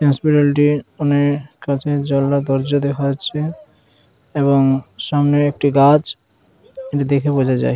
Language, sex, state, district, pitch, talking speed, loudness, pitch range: Bengali, female, West Bengal, Dakshin Dinajpur, 140 Hz, 140 wpm, -17 LUFS, 135-145 Hz